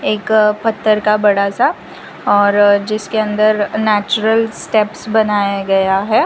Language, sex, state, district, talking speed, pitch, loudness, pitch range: Hindi, female, Gujarat, Valsad, 125 wpm, 215 Hz, -14 LUFS, 205-220 Hz